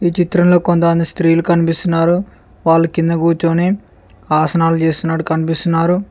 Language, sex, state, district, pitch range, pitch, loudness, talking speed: Telugu, male, Telangana, Mahabubabad, 165-175 Hz, 165 Hz, -14 LUFS, 100 wpm